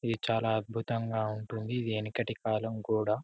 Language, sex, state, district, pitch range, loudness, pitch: Telugu, male, Telangana, Karimnagar, 110-115 Hz, -33 LUFS, 110 Hz